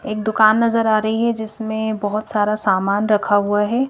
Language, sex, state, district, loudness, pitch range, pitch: Hindi, female, Madhya Pradesh, Bhopal, -18 LUFS, 210-220 Hz, 215 Hz